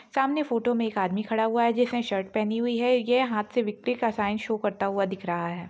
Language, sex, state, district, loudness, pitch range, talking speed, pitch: Hindi, female, Chhattisgarh, Rajnandgaon, -26 LUFS, 200-240 Hz, 275 wpm, 220 Hz